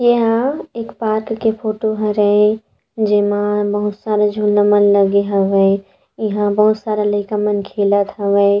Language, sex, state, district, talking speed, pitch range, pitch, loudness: Chhattisgarhi, female, Chhattisgarh, Rajnandgaon, 145 wpm, 205-215 Hz, 210 Hz, -16 LUFS